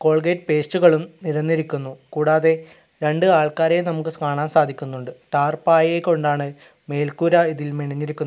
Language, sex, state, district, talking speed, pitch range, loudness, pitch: Malayalam, male, Kerala, Kasaragod, 110 wpm, 145-165 Hz, -20 LUFS, 155 Hz